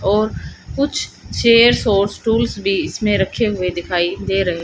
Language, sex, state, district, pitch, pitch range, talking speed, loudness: Hindi, female, Haryana, Rohtak, 200 Hz, 185-225 Hz, 155 wpm, -17 LUFS